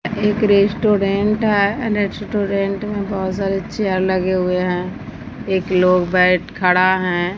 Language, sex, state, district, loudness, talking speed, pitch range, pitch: Hindi, female, Bihar, Katihar, -17 LUFS, 130 wpm, 185-205 Hz, 195 Hz